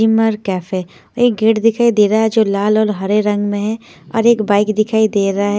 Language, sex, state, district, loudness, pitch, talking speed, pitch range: Hindi, female, Odisha, Sambalpur, -15 LUFS, 215 Hz, 235 wpm, 205-225 Hz